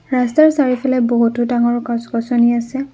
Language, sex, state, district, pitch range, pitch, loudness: Assamese, female, Assam, Kamrup Metropolitan, 235-260 Hz, 240 Hz, -15 LUFS